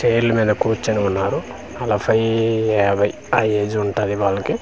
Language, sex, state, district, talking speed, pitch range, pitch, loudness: Telugu, male, Andhra Pradesh, Manyam, 155 wpm, 100-115 Hz, 105 Hz, -19 LUFS